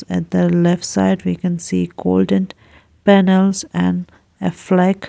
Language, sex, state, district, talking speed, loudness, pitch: English, female, Arunachal Pradesh, Lower Dibang Valley, 140 wpm, -17 LUFS, 170 Hz